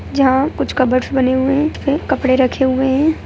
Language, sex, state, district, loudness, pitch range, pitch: Hindi, male, Bihar, Gaya, -15 LUFS, 260-285 Hz, 265 Hz